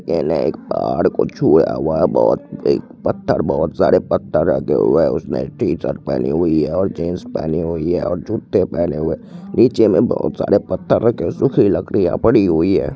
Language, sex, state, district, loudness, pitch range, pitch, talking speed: Hindi, male, Bihar, Purnia, -17 LUFS, 80-95 Hz, 85 Hz, 190 wpm